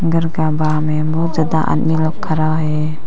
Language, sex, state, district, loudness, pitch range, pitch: Hindi, female, Arunachal Pradesh, Papum Pare, -17 LUFS, 155-160 Hz, 155 Hz